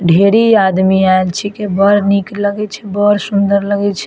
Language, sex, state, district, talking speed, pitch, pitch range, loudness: Maithili, female, Bihar, Samastipur, 190 wpm, 200 Hz, 195-205 Hz, -12 LUFS